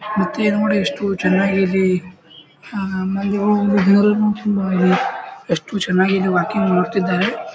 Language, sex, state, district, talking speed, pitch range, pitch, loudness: Kannada, male, Karnataka, Bijapur, 105 wpm, 185-210 Hz, 195 Hz, -18 LUFS